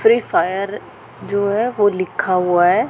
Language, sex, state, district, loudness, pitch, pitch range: Hindi, female, Punjab, Pathankot, -18 LUFS, 200 Hz, 185-210 Hz